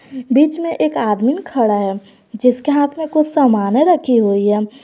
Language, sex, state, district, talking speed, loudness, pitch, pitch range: Hindi, female, Jharkhand, Garhwa, 175 wpm, -15 LUFS, 255 Hz, 210-295 Hz